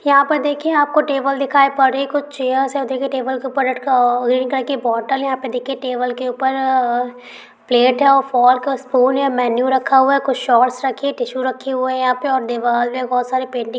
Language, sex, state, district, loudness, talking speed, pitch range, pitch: Hindi, female, Chhattisgarh, Raigarh, -17 LUFS, 205 wpm, 250-275 Hz, 260 Hz